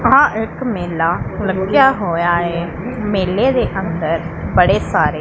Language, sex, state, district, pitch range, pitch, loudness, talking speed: Punjabi, female, Punjab, Pathankot, 175-250 Hz, 195 Hz, -16 LUFS, 125 wpm